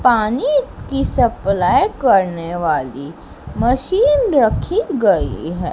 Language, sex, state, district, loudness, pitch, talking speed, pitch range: Hindi, female, Madhya Pradesh, Dhar, -16 LUFS, 230 Hz, 95 wpm, 175-290 Hz